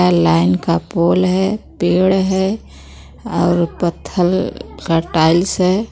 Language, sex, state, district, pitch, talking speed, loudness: Hindi, female, Jharkhand, Garhwa, 175 Hz, 120 wpm, -16 LUFS